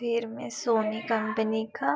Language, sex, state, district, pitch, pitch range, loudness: Hindi, female, Uttar Pradesh, Etah, 220 Hz, 220-235 Hz, -29 LUFS